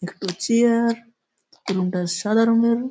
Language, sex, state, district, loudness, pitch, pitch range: Bengali, male, West Bengal, Malda, -21 LUFS, 230 Hz, 185-235 Hz